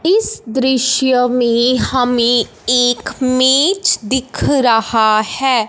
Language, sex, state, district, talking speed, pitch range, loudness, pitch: Hindi, female, Punjab, Fazilka, 95 wpm, 240-265 Hz, -14 LUFS, 250 Hz